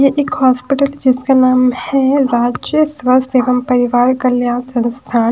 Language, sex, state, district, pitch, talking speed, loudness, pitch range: Hindi, female, Punjab, Pathankot, 255 Hz, 135 wpm, -13 LUFS, 245-270 Hz